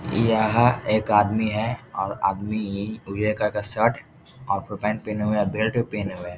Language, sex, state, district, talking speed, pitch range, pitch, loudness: Hindi, male, Bihar, Jahanabad, 205 wpm, 105-115 Hz, 105 Hz, -23 LUFS